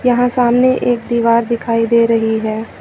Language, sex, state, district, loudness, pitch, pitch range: Hindi, female, Uttar Pradesh, Lucknow, -14 LUFS, 235 Hz, 230-245 Hz